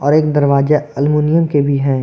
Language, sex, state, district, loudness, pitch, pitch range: Hindi, male, Jharkhand, Garhwa, -14 LUFS, 145 Hz, 140-150 Hz